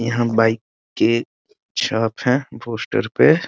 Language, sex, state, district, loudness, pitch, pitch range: Hindi, male, Bihar, Muzaffarpur, -20 LUFS, 115 Hz, 115-125 Hz